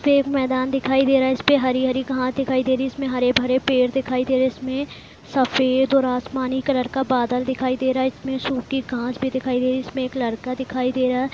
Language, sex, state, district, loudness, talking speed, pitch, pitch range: Hindi, female, Bihar, Lakhisarai, -21 LUFS, 245 wpm, 260 Hz, 255-265 Hz